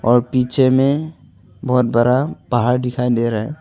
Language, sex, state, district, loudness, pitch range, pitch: Hindi, male, Arunachal Pradesh, Longding, -17 LUFS, 120-130 Hz, 125 Hz